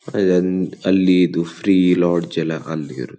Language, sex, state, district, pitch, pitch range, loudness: Kannada, male, Karnataka, Dakshina Kannada, 90 Hz, 85-95 Hz, -18 LUFS